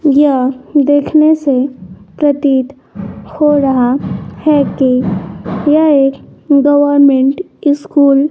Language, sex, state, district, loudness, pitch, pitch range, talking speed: Hindi, female, Bihar, West Champaran, -12 LUFS, 280 Hz, 265-295 Hz, 85 wpm